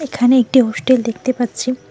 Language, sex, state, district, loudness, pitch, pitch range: Bengali, female, West Bengal, Cooch Behar, -15 LUFS, 255 Hz, 245-255 Hz